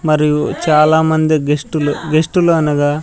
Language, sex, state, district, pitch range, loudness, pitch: Telugu, male, Andhra Pradesh, Sri Satya Sai, 150-160 Hz, -14 LUFS, 155 Hz